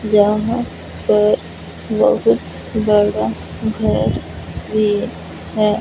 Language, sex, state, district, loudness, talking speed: Hindi, female, Punjab, Fazilka, -17 LUFS, 70 wpm